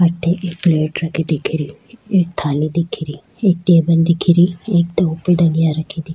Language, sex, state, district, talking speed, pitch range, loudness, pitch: Rajasthani, female, Rajasthan, Churu, 145 wpm, 160-175 Hz, -16 LUFS, 170 Hz